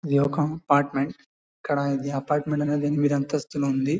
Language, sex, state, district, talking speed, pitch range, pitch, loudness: Telugu, male, Karnataka, Bellary, 135 wpm, 140-150 Hz, 145 Hz, -25 LUFS